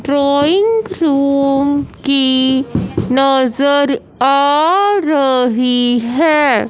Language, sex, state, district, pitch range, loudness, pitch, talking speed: Hindi, male, Punjab, Fazilka, 265-295 Hz, -13 LUFS, 280 Hz, 65 wpm